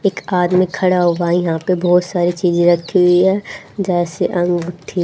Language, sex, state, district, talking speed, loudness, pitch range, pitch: Hindi, female, Haryana, Rohtak, 165 wpm, -16 LUFS, 175-185 Hz, 175 Hz